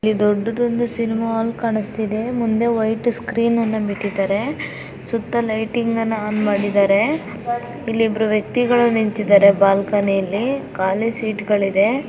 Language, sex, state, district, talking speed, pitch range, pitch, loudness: Kannada, female, Karnataka, Raichur, 115 wpm, 205-230 Hz, 220 Hz, -19 LUFS